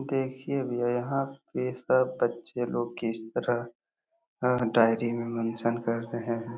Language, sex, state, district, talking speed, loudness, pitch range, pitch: Hindi, male, Bihar, Supaul, 135 wpm, -29 LUFS, 115-130 Hz, 120 Hz